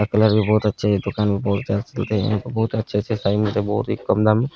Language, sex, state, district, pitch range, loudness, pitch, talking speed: Bhojpuri, male, Bihar, Saran, 100-110 Hz, -21 LUFS, 105 Hz, 290 wpm